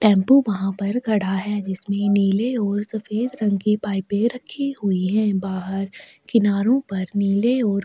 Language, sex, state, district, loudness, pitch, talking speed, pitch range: Hindi, female, Chhattisgarh, Sukma, -21 LUFS, 205 Hz, 155 wpm, 195-225 Hz